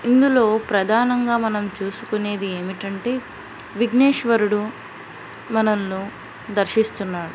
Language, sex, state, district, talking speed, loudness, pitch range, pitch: Telugu, female, Andhra Pradesh, Visakhapatnam, 65 wpm, -20 LUFS, 200-235 Hz, 215 Hz